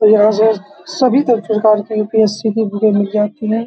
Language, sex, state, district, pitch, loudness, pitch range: Hindi, male, Uttar Pradesh, Hamirpur, 215 Hz, -14 LUFS, 210-220 Hz